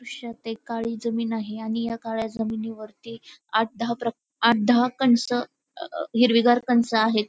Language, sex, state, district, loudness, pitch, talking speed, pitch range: Marathi, female, Maharashtra, Pune, -24 LUFS, 230 Hz, 155 wpm, 225-245 Hz